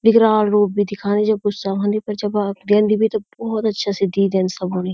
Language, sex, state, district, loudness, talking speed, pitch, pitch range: Garhwali, female, Uttarakhand, Uttarkashi, -18 LUFS, 230 wpm, 205 Hz, 195-215 Hz